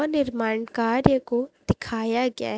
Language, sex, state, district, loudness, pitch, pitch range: Hindi, female, Chhattisgarh, Raipur, -24 LUFS, 235 Hz, 225-255 Hz